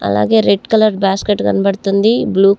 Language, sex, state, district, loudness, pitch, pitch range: Telugu, female, Andhra Pradesh, Chittoor, -13 LUFS, 200 Hz, 195-215 Hz